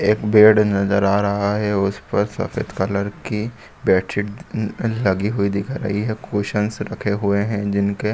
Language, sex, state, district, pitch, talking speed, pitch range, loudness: Hindi, male, Chhattisgarh, Bilaspur, 105 Hz, 175 wpm, 100-105 Hz, -20 LUFS